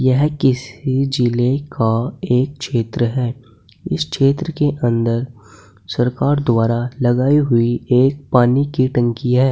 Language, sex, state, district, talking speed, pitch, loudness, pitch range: Hindi, male, Uttar Pradesh, Saharanpur, 125 wpm, 125 Hz, -17 LUFS, 120-135 Hz